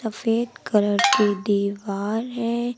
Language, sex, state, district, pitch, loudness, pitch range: Hindi, female, Uttar Pradesh, Lucknow, 220 Hz, -22 LUFS, 205-230 Hz